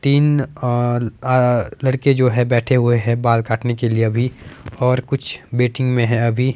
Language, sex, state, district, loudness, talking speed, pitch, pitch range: Hindi, male, Himachal Pradesh, Shimla, -18 LUFS, 185 wpm, 125 Hz, 115-130 Hz